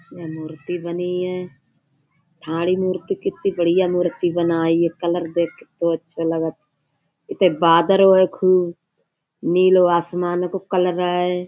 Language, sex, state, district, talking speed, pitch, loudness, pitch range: Hindi, female, Uttar Pradesh, Budaun, 135 wpm, 175 Hz, -19 LUFS, 165-180 Hz